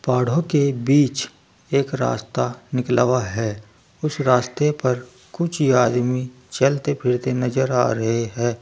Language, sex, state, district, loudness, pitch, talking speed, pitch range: Hindi, male, Uttar Pradesh, Saharanpur, -21 LUFS, 125 Hz, 130 wpm, 125-140 Hz